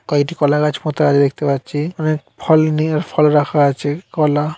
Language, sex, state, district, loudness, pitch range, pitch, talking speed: Bengali, male, West Bengal, Purulia, -16 LUFS, 145-155 Hz, 150 Hz, 185 wpm